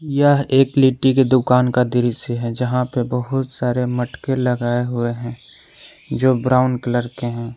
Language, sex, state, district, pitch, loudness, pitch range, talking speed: Hindi, male, Jharkhand, Palamu, 125 Hz, -18 LUFS, 120-130 Hz, 165 wpm